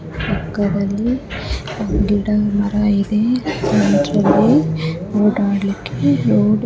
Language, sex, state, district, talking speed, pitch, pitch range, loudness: Kannada, female, Karnataka, Bellary, 70 wpm, 205 Hz, 160-210 Hz, -17 LUFS